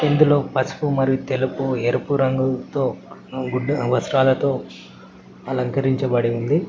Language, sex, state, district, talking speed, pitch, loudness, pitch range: Telugu, male, Telangana, Mahabubabad, 80 wpm, 130 Hz, -21 LUFS, 125-140 Hz